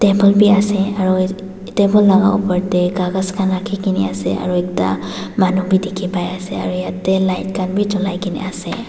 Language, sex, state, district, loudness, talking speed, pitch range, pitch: Nagamese, female, Nagaland, Dimapur, -17 LUFS, 180 wpm, 180-195 Hz, 190 Hz